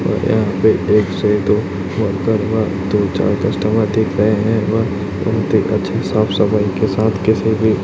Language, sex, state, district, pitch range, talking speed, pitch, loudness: Hindi, male, Chhattisgarh, Raipur, 100-110 Hz, 155 wpm, 105 Hz, -16 LUFS